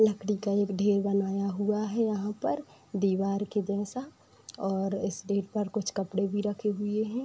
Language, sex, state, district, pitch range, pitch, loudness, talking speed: Hindi, female, Uttar Pradesh, Budaun, 200-210 Hz, 205 Hz, -30 LUFS, 190 wpm